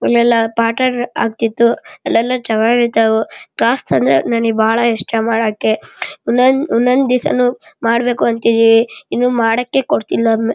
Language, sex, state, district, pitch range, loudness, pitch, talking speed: Kannada, male, Karnataka, Shimoga, 225-245 Hz, -14 LUFS, 230 Hz, 100 wpm